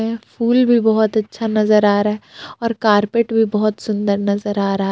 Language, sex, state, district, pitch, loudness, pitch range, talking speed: Hindi, female, Jharkhand, Palamu, 215 Hz, -17 LUFS, 205-225 Hz, 220 wpm